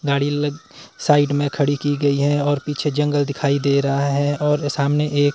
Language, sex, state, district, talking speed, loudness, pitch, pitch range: Hindi, male, Himachal Pradesh, Shimla, 190 wpm, -19 LUFS, 145 Hz, 140-145 Hz